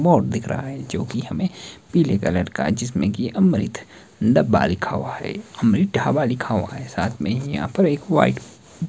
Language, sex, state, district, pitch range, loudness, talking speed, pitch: Hindi, male, Himachal Pradesh, Shimla, 120-190 Hz, -21 LUFS, 190 wpm, 150 Hz